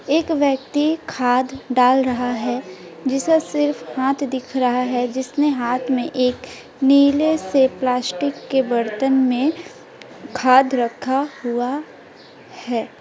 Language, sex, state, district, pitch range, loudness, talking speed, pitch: Hindi, female, West Bengal, Alipurduar, 250-285 Hz, -19 LUFS, 120 wpm, 265 Hz